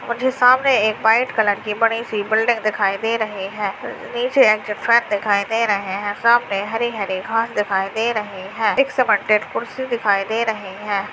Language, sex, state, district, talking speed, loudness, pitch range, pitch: Hindi, female, Bihar, Jahanabad, 185 wpm, -19 LUFS, 205-235 Hz, 220 Hz